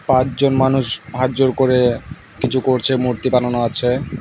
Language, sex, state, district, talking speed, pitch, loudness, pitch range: Bengali, male, West Bengal, Alipurduar, 130 wpm, 130 Hz, -17 LUFS, 125-130 Hz